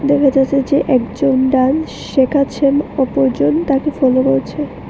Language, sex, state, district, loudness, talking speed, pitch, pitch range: Bengali, female, Tripura, West Tripura, -15 LUFS, 125 wpm, 275 Hz, 260-285 Hz